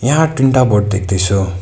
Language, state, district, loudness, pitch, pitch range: Nepali, West Bengal, Darjeeling, -14 LUFS, 105 Hz, 95-135 Hz